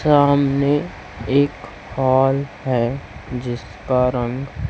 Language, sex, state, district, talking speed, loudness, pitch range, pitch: Hindi, male, Chhattisgarh, Raipur, 75 wpm, -19 LUFS, 125-140 Hz, 130 Hz